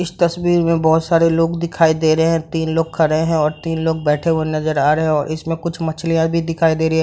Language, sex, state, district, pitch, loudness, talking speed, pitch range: Hindi, male, Bihar, Madhepura, 165 Hz, -17 LUFS, 275 wpm, 160-165 Hz